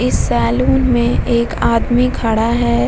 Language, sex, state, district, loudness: Hindi, female, Bihar, Vaishali, -15 LUFS